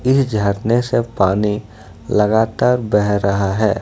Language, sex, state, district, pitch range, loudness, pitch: Hindi, male, Jharkhand, Ranchi, 100-115 Hz, -17 LUFS, 105 Hz